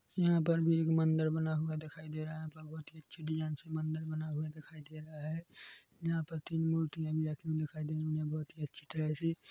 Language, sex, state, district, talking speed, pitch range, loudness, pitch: Hindi, male, Chhattisgarh, Korba, 240 wpm, 155-160 Hz, -36 LUFS, 155 Hz